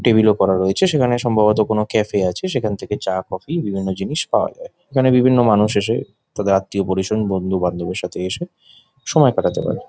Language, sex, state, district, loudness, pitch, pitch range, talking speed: Bengali, male, West Bengal, Jhargram, -18 LUFS, 105 Hz, 95-125 Hz, 195 wpm